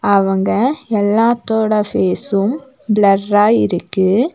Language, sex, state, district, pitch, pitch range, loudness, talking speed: Tamil, female, Tamil Nadu, Nilgiris, 210 Hz, 200-230 Hz, -15 LUFS, 70 wpm